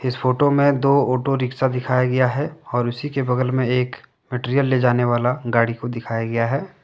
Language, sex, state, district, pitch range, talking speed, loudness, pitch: Hindi, male, Jharkhand, Deoghar, 120-135 Hz, 210 wpm, -20 LUFS, 125 Hz